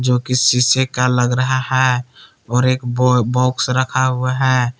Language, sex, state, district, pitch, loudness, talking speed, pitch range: Hindi, male, Jharkhand, Palamu, 125 Hz, -16 LUFS, 160 wpm, 125-130 Hz